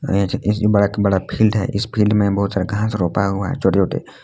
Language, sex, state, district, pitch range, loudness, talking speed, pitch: Hindi, male, Jharkhand, Palamu, 100-105 Hz, -18 LUFS, 270 wpm, 100 Hz